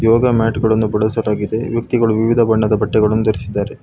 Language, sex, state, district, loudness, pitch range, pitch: Kannada, male, Karnataka, Bangalore, -16 LUFS, 110-115 Hz, 110 Hz